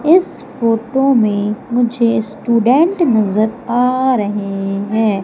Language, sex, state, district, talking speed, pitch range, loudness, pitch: Hindi, female, Madhya Pradesh, Umaria, 105 wpm, 215-260 Hz, -15 LUFS, 230 Hz